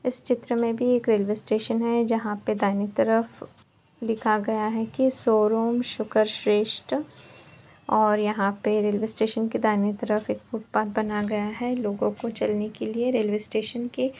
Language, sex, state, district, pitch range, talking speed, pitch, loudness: Hindi, female, Uttar Pradesh, Etah, 210-235 Hz, 175 wpm, 220 Hz, -25 LUFS